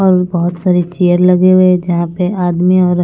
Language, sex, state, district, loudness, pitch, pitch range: Hindi, female, Punjab, Pathankot, -12 LUFS, 180 Hz, 175-185 Hz